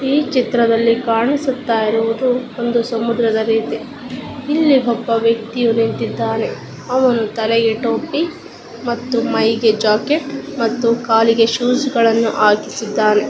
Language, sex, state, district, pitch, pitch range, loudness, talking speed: Kannada, male, Karnataka, Dakshina Kannada, 235 Hz, 225-255 Hz, -16 LUFS, 100 wpm